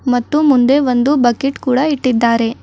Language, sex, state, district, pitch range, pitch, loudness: Kannada, female, Karnataka, Bidar, 240-280 Hz, 255 Hz, -14 LUFS